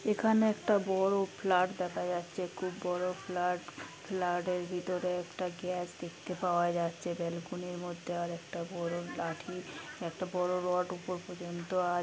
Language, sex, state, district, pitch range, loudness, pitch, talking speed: Bengali, female, West Bengal, Kolkata, 175-180 Hz, -34 LUFS, 180 Hz, 150 wpm